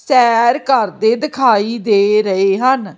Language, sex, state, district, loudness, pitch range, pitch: Punjabi, female, Chandigarh, Chandigarh, -13 LUFS, 205-255 Hz, 230 Hz